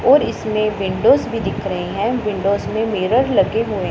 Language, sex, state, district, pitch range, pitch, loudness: Hindi, female, Punjab, Pathankot, 195-225 Hz, 215 Hz, -18 LUFS